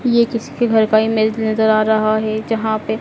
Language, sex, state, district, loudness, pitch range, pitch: Hindi, female, Madhya Pradesh, Dhar, -16 LUFS, 215-225 Hz, 220 Hz